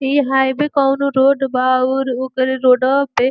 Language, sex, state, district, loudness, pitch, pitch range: Bhojpuri, female, Uttar Pradesh, Gorakhpur, -15 LUFS, 265 Hz, 260-275 Hz